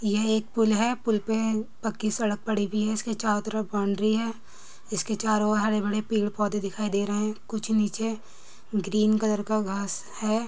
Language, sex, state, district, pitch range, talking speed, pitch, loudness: Hindi, female, Uttar Pradesh, Jyotiba Phule Nagar, 210-220 Hz, 200 wpm, 215 Hz, -27 LUFS